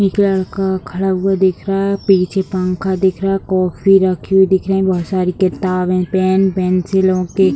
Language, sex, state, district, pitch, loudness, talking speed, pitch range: Hindi, female, Bihar, Sitamarhi, 190 Hz, -15 LUFS, 190 wpm, 185-195 Hz